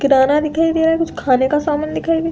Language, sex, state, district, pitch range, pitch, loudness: Hindi, female, Uttar Pradesh, Deoria, 280-325 Hz, 305 Hz, -16 LUFS